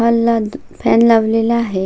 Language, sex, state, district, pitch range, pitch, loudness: Marathi, female, Maharashtra, Sindhudurg, 225-235 Hz, 230 Hz, -14 LUFS